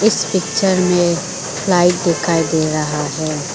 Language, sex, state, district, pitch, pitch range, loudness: Hindi, female, Arunachal Pradesh, Lower Dibang Valley, 175 Hz, 155-185 Hz, -16 LUFS